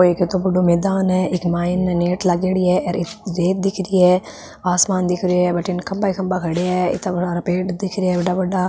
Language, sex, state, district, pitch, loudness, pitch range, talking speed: Marwari, female, Rajasthan, Nagaur, 180 Hz, -19 LUFS, 180-185 Hz, 220 wpm